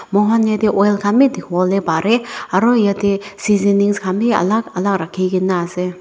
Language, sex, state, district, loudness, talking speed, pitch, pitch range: Nagamese, female, Nagaland, Dimapur, -16 LUFS, 180 wpm, 200 Hz, 185-215 Hz